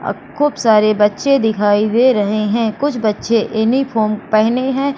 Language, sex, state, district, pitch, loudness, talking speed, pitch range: Hindi, female, Madhya Pradesh, Katni, 225 Hz, -15 LUFS, 155 wpm, 215-260 Hz